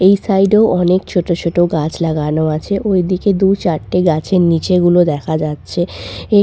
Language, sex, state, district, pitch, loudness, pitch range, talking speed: Bengali, female, West Bengal, Purulia, 175 Hz, -14 LUFS, 160-195 Hz, 150 wpm